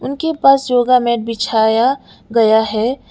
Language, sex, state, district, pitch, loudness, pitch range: Hindi, female, Sikkim, Gangtok, 240 Hz, -14 LUFS, 225-270 Hz